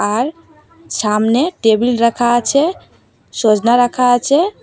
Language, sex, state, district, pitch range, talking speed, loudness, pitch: Bengali, female, Assam, Hailakandi, 225-280 Hz, 105 wpm, -14 LUFS, 245 Hz